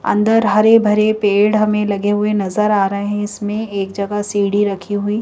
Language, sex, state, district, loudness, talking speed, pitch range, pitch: Hindi, female, Madhya Pradesh, Bhopal, -16 LUFS, 195 wpm, 205-210 Hz, 205 Hz